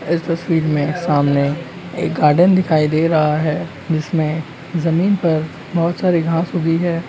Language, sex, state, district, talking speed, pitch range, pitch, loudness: Hindi, male, Bihar, Begusarai, 150 wpm, 155-170 Hz, 165 Hz, -17 LUFS